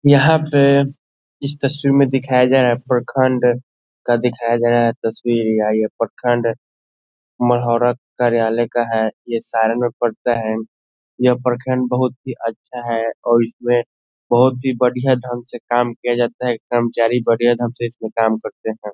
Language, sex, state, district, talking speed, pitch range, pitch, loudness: Hindi, male, Bihar, Saran, 150 wpm, 115-125 Hz, 120 Hz, -18 LUFS